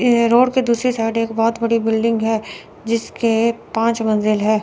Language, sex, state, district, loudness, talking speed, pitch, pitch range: Hindi, female, Chandigarh, Chandigarh, -18 LUFS, 180 wpm, 230 Hz, 225-230 Hz